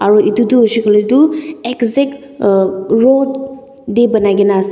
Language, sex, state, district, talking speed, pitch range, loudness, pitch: Nagamese, female, Nagaland, Dimapur, 140 wpm, 210-270 Hz, -12 LUFS, 235 Hz